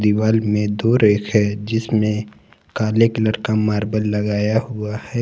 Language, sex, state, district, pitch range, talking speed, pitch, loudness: Hindi, male, Jharkhand, Garhwa, 105-110 Hz, 150 wpm, 110 Hz, -19 LUFS